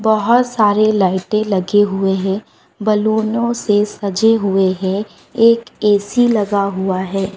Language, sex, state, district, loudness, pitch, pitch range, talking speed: Hindi, female, Bihar, West Champaran, -15 LUFS, 205 Hz, 195-220 Hz, 130 wpm